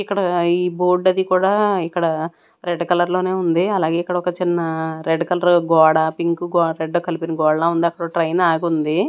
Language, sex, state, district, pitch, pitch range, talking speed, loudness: Telugu, female, Andhra Pradesh, Annamaya, 170 Hz, 165-180 Hz, 180 wpm, -18 LUFS